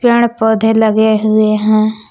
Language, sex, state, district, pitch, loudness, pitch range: Hindi, female, Jharkhand, Palamu, 220 Hz, -12 LUFS, 215-225 Hz